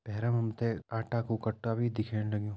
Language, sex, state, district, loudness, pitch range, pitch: Hindi, male, Uttarakhand, Uttarkashi, -33 LUFS, 110-115 Hz, 115 Hz